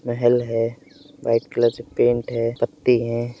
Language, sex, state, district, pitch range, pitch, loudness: Hindi, male, Uttar Pradesh, Etah, 115-120 Hz, 120 Hz, -21 LUFS